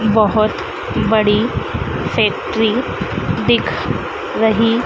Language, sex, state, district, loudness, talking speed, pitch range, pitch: Hindi, female, Madhya Pradesh, Dhar, -17 LUFS, 60 wpm, 215-225 Hz, 220 Hz